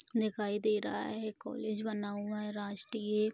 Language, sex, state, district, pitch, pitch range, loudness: Hindi, female, Bihar, Vaishali, 210 Hz, 210-215 Hz, -35 LUFS